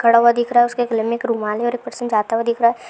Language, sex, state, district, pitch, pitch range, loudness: Hindi, female, Andhra Pradesh, Krishna, 235 Hz, 230-240 Hz, -18 LUFS